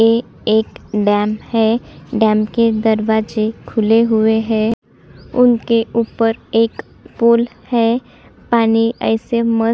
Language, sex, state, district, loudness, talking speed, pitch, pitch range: Hindi, female, Chhattisgarh, Sukma, -16 LUFS, 115 wpm, 225 Hz, 220-230 Hz